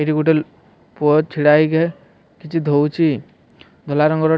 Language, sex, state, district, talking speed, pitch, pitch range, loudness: Odia, male, Odisha, Sambalpur, 150 wpm, 155 Hz, 150-160 Hz, -17 LUFS